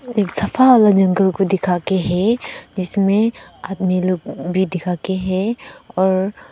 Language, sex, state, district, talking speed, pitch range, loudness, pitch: Hindi, female, Arunachal Pradesh, Papum Pare, 130 wpm, 185-205 Hz, -17 LUFS, 190 Hz